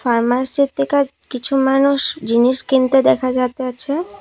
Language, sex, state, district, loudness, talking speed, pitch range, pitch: Bengali, female, Assam, Kamrup Metropolitan, -16 LUFS, 130 wpm, 250-280 Hz, 265 Hz